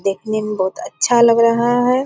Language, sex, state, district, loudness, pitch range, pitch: Hindi, female, Bihar, Purnia, -16 LUFS, 210-240 Hz, 230 Hz